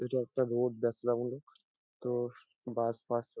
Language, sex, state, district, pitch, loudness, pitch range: Bengali, male, West Bengal, North 24 Parganas, 120 Hz, -35 LUFS, 120-125 Hz